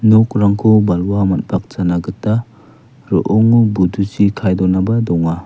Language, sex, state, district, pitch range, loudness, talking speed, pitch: Garo, male, Meghalaya, West Garo Hills, 90-110 Hz, -14 LUFS, 100 wpm, 100 Hz